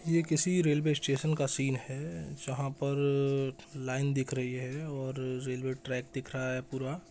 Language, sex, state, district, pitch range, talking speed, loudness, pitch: Hindi, male, Jharkhand, Jamtara, 130-140 Hz, 170 wpm, -33 LUFS, 135 Hz